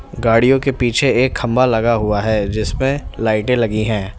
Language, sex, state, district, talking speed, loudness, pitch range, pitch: Hindi, male, Uttar Pradesh, Lalitpur, 170 wpm, -16 LUFS, 110-125 Hz, 115 Hz